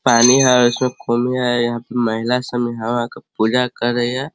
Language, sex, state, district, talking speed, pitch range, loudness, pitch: Hindi, male, Bihar, Sitamarhi, 220 wpm, 120-125 Hz, -17 LUFS, 120 Hz